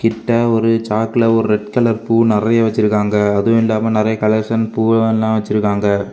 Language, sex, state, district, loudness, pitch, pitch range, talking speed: Tamil, male, Tamil Nadu, Kanyakumari, -15 LUFS, 110 Hz, 105-115 Hz, 155 wpm